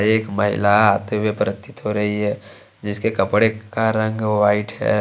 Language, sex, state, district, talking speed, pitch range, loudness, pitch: Hindi, male, Jharkhand, Deoghar, 170 wpm, 105-110 Hz, -19 LUFS, 105 Hz